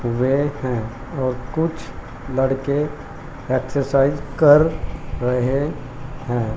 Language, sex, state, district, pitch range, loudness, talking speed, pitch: Hindi, male, Haryana, Jhajjar, 125-145 Hz, -20 LUFS, 80 wpm, 135 Hz